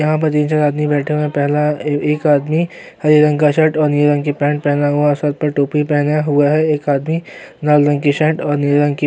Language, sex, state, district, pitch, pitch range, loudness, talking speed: Hindi, male, Uttarakhand, Tehri Garhwal, 150 Hz, 145-150 Hz, -15 LUFS, 250 wpm